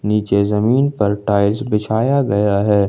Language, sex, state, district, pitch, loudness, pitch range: Hindi, male, Jharkhand, Ranchi, 105 Hz, -16 LUFS, 100-110 Hz